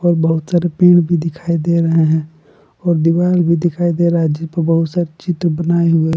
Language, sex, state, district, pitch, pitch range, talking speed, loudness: Hindi, male, Jharkhand, Palamu, 170 Hz, 165-175 Hz, 205 wpm, -15 LUFS